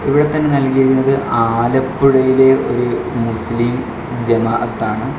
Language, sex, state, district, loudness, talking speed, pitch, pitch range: Malayalam, male, Kerala, Kollam, -15 LUFS, 80 wpm, 125 Hz, 115-135 Hz